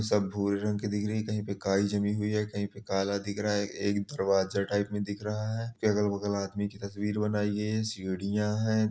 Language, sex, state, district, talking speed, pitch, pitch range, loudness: Hindi, male, Bihar, Supaul, 240 wpm, 105 Hz, 100-105 Hz, -30 LUFS